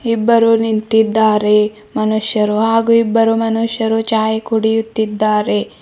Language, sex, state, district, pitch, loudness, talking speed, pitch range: Kannada, female, Karnataka, Bidar, 220 Hz, -14 LUFS, 80 wpm, 215-225 Hz